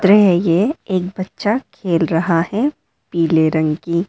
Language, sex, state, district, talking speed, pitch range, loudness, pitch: Hindi, female, Arunachal Pradesh, Lower Dibang Valley, 175 wpm, 165-205 Hz, -17 LUFS, 180 Hz